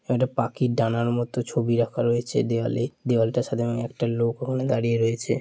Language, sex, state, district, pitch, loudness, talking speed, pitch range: Bengali, male, West Bengal, Purulia, 120 Hz, -25 LUFS, 175 wpm, 115-125 Hz